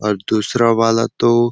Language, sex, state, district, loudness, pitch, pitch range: Hindi, male, Chhattisgarh, Sarguja, -16 LUFS, 115 Hz, 110-120 Hz